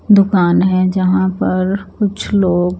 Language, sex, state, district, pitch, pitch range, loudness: Hindi, female, Chandigarh, Chandigarh, 185 Hz, 185-195 Hz, -14 LUFS